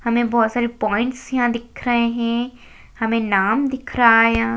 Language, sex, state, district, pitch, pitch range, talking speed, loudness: Hindi, female, Chhattisgarh, Jashpur, 235 Hz, 225-245 Hz, 185 wpm, -19 LUFS